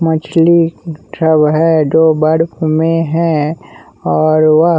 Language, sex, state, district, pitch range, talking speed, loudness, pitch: Hindi, male, Bihar, West Champaran, 155-165 Hz, 115 wpm, -12 LUFS, 160 Hz